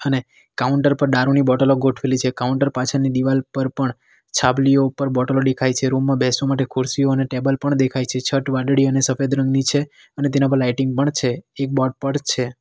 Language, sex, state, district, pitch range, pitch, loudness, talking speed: Gujarati, male, Gujarat, Valsad, 130-135 Hz, 135 Hz, -19 LUFS, 205 wpm